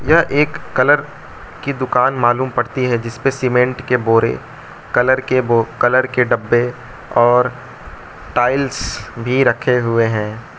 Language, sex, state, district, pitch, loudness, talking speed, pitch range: Hindi, male, Arunachal Pradesh, Lower Dibang Valley, 125 Hz, -16 LUFS, 120 wpm, 120-130 Hz